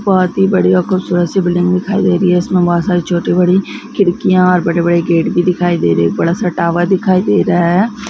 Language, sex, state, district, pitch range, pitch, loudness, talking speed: Hindi, female, Chhattisgarh, Korba, 175-190 Hz, 180 Hz, -13 LUFS, 230 wpm